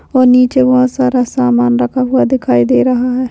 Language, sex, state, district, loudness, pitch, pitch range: Hindi, female, Maharashtra, Solapur, -11 LUFS, 255 Hz, 245-255 Hz